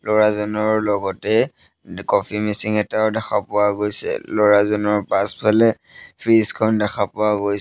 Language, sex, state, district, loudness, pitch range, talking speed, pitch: Assamese, male, Assam, Sonitpur, -18 LUFS, 105-110 Hz, 120 wpm, 105 Hz